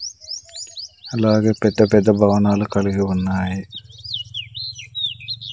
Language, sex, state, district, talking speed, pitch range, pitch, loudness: Telugu, male, Andhra Pradesh, Sri Satya Sai, 65 wpm, 100-115 Hz, 110 Hz, -19 LUFS